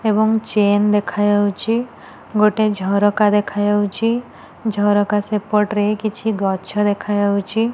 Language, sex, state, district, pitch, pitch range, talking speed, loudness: Odia, female, Odisha, Nuapada, 210 Hz, 205-215 Hz, 95 wpm, -18 LUFS